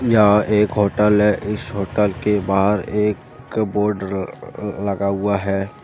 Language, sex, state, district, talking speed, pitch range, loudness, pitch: Hindi, male, Jharkhand, Deoghar, 165 wpm, 100-105 Hz, -19 LUFS, 105 Hz